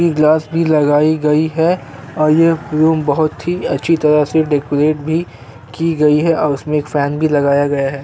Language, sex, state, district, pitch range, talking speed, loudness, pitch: Hindi, male, Uttar Pradesh, Jyotiba Phule Nagar, 145-160 Hz, 200 wpm, -14 LUFS, 155 Hz